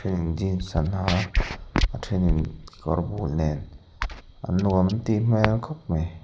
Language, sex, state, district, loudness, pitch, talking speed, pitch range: Mizo, male, Mizoram, Aizawl, -26 LUFS, 90 Hz, 175 wpm, 80-100 Hz